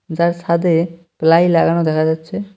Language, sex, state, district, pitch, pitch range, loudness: Bengali, male, West Bengal, Cooch Behar, 170 Hz, 165-170 Hz, -15 LUFS